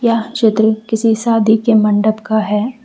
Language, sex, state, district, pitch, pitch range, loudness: Hindi, female, Jharkhand, Deoghar, 220 Hz, 215-230 Hz, -14 LUFS